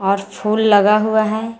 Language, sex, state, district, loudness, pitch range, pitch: Hindi, female, Jharkhand, Garhwa, -15 LUFS, 200-220 Hz, 215 Hz